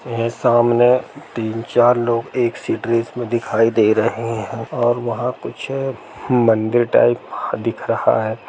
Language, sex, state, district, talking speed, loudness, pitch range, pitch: Hindi, male, Bihar, Gaya, 150 wpm, -18 LUFS, 115-120 Hz, 120 Hz